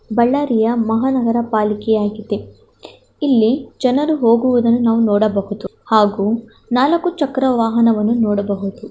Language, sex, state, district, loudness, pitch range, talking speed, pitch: Kannada, female, Karnataka, Bellary, -16 LUFS, 215-255 Hz, 90 wpm, 230 Hz